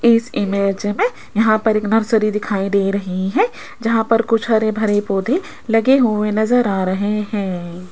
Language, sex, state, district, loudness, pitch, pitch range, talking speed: Hindi, female, Rajasthan, Jaipur, -17 LUFS, 215 Hz, 200-230 Hz, 175 wpm